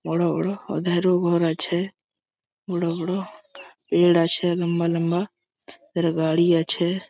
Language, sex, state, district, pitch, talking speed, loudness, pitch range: Bengali, male, West Bengal, Malda, 175 Hz, 120 wpm, -22 LUFS, 170-185 Hz